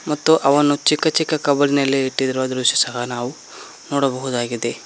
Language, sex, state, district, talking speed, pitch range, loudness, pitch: Kannada, male, Karnataka, Koppal, 125 wpm, 125-145 Hz, -18 LUFS, 135 Hz